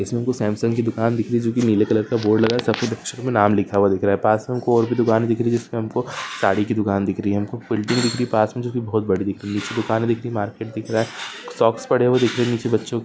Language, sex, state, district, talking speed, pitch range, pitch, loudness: Hindi, male, Maharashtra, Solapur, 305 wpm, 105-120 Hz, 115 Hz, -20 LUFS